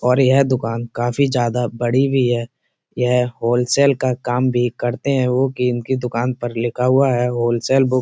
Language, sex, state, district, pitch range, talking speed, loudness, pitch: Hindi, male, Uttar Pradesh, Muzaffarnagar, 120-130 Hz, 180 wpm, -18 LUFS, 125 Hz